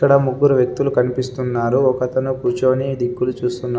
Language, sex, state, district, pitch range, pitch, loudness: Telugu, male, Telangana, Adilabad, 125-130 Hz, 130 Hz, -18 LUFS